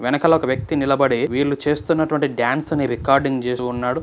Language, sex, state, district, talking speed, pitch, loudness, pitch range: Telugu, male, Andhra Pradesh, Chittoor, 165 wpm, 140 Hz, -19 LUFS, 125-150 Hz